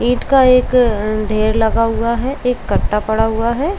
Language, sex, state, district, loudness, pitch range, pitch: Hindi, female, Uttar Pradesh, Jalaun, -15 LUFS, 220-250 Hz, 230 Hz